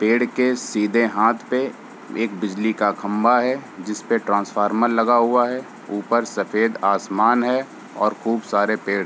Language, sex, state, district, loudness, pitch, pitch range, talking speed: Hindi, male, Bihar, Gopalganj, -20 LUFS, 115 Hz, 105-120 Hz, 145 wpm